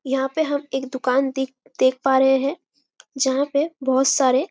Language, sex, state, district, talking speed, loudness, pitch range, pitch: Hindi, female, Chhattisgarh, Bastar, 200 wpm, -21 LUFS, 265-285 Hz, 265 Hz